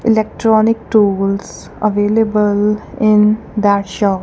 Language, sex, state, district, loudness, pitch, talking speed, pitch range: English, female, Punjab, Kapurthala, -14 LUFS, 210 Hz, 85 wpm, 205-220 Hz